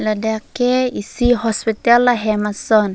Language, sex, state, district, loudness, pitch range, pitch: Karbi, female, Assam, Karbi Anglong, -17 LUFS, 215-245 Hz, 225 Hz